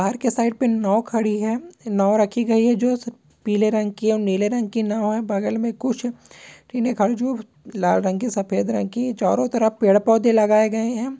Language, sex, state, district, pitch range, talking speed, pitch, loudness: Hindi, female, Bihar, East Champaran, 210-240 Hz, 185 wpm, 225 Hz, -21 LUFS